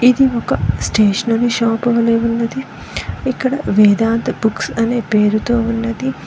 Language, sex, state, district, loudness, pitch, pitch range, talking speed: Telugu, female, Telangana, Mahabubabad, -16 LUFS, 230 Hz, 225-245 Hz, 115 wpm